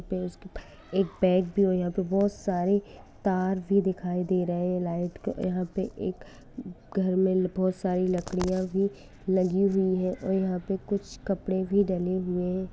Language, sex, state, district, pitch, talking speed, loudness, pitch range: Hindi, female, Bihar, Sitamarhi, 185 Hz, 140 wpm, -28 LUFS, 180-195 Hz